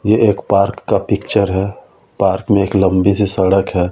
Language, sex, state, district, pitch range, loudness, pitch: Hindi, male, Delhi, New Delhi, 95-100 Hz, -15 LUFS, 100 Hz